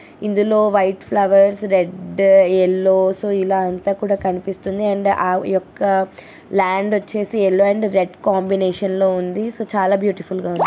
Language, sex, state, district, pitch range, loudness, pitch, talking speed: Telugu, female, Andhra Pradesh, Krishna, 190-205 Hz, -17 LUFS, 195 Hz, 145 wpm